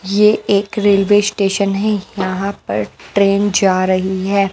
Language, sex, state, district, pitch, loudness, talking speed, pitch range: Hindi, female, Bihar, West Champaran, 200 Hz, -15 LUFS, 145 wpm, 190-205 Hz